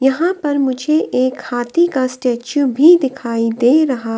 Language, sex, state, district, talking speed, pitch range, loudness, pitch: Hindi, female, Delhi, New Delhi, 160 wpm, 245-300 Hz, -15 LUFS, 265 Hz